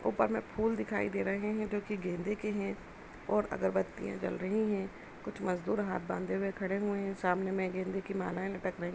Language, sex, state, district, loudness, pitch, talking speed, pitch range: Hindi, female, Uttar Pradesh, Budaun, -35 LUFS, 195 Hz, 210 wpm, 180-205 Hz